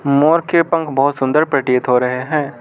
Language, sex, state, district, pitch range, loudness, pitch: Hindi, male, Arunachal Pradesh, Lower Dibang Valley, 130-155 Hz, -15 LUFS, 145 Hz